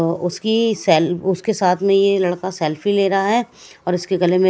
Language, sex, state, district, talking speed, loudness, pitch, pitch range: Hindi, female, Punjab, Kapurthala, 215 wpm, -18 LUFS, 185 Hz, 175-200 Hz